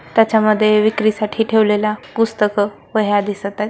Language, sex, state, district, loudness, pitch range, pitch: Marathi, female, Maharashtra, Solapur, -16 LUFS, 210-220 Hz, 215 Hz